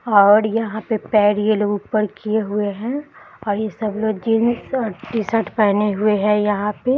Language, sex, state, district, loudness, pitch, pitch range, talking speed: Hindi, female, Bihar, Samastipur, -19 LUFS, 215 Hz, 210-225 Hz, 190 wpm